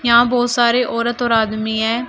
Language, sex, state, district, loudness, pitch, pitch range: Hindi, female, Uttar Pradesh, Shamli, -16 LUFS, 235 Hz, 225-245 Hz